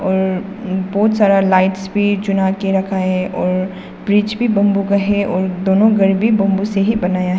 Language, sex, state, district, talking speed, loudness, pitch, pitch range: Hindi, female, Arunachal Pradesh, Papum Pare, 195 wpm, -16 LUFS, 195 Hz, 190-205 Hz